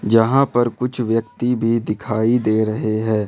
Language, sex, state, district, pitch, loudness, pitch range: Hindi, male, Jharkhand, Ranchi, 115 Hz, -19 LUFS, 110-120 Hz